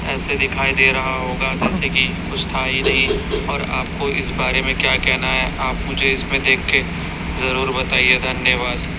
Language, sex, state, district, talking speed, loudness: Hindi, male, Chhattisgarh, Raipur, 180 wpm, -17 LUFS